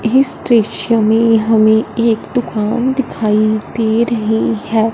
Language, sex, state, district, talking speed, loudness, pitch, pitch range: Hindi, female, Punjab, Fazilka, 120 wpm, -14 LUFS, 225 Hz, 215-235 Hz